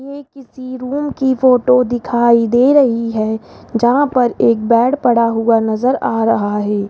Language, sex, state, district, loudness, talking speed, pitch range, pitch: Hindi, female, Rajasthan, Jaipur, -14 LUFS, 165 wpm, 230-260 Hz, 240 Hz